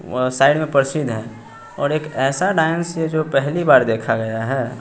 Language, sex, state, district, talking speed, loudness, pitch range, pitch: Hindi, female, Bihar, West Champaran, 200 wpm, -18 LUFS, 115-155 Hz, 135 Hz